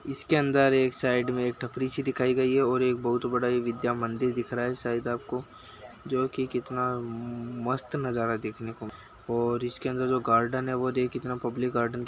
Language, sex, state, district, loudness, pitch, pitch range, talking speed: Hindi, male, Bihar, Bhagalpur, -28 LUFS, 125 Hz, 120-130 Hz, 190 wpm